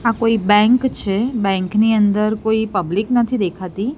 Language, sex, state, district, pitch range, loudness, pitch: Gujarati, female, Gujarat, Gandhinagar, 200-230 Hz, -17 LUFS, 215 Hz